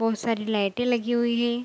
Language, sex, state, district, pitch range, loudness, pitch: Hindi, female, Bihar, Vaishali, 225-240 Hz, -25 LUFS, 235 Hz